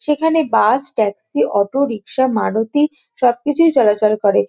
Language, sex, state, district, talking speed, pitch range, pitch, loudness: Bengali, female, West Bengal, North 24 Parganas, 120 wpm, 215-290 Hz, 255 Hz, -16 LUFS